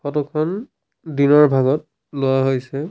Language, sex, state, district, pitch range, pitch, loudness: Assamese, male, Assam, Sonitpur, 135-155 Hz, 145 Hz, -18 LUFS